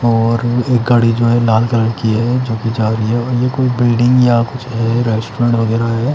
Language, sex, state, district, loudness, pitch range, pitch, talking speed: Hindi, male, Chandigarh, Chandigarh, -14 LUFS, 115-120 Hz, 120 Hz, 225 wpm